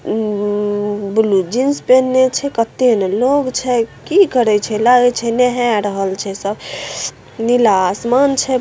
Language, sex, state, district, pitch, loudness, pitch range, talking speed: Maithili, female, Bihar, Samastipur, 235 Hz, -15 LUFS, 205-255 Hz, 140 wpm